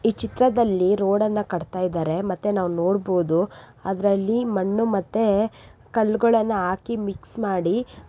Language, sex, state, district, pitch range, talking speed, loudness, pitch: Kannada, female, Karnataka, Raichur, 185-220 Hz, 125 wpm, -22 LUFS, 200 Hz